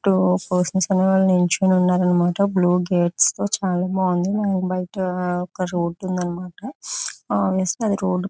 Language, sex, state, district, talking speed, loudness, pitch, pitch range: Telugu, female, Andhra Pradesh, Chittoor, 115 wpm, -20 LUFS, 185 Hz, 180-190 Hz